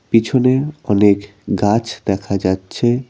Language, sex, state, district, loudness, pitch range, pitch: Bengali, male, West Bengal, Cooch Behar, -17 LUFS, 100-120 Hz, 105 Hz